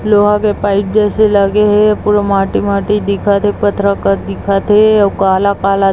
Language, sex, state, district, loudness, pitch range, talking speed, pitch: Chhattisgarhi, female, Chhattisgarh, Bilaspur, -12 LUFS, 200-210 Hz, 160 wpm, 205 Hz